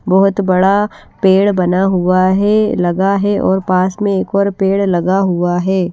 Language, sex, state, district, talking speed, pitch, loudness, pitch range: Hindi, female, Haryana, Rohtak, 170 wpm, 190 Hz, -13 LUFS, 185-200 Hz